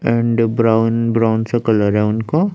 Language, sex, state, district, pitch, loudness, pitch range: Hindi, male, Chandigarh, Chandigarh, 115 Hz, -16 LUFS, 110-115 Hz